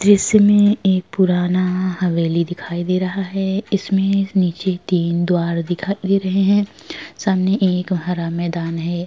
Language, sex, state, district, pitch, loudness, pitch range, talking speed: Hindi, female, Uttar Pradesh, Jalaun, 185 Hz, -18 LUFS, 175-195 Hz, 145 wpm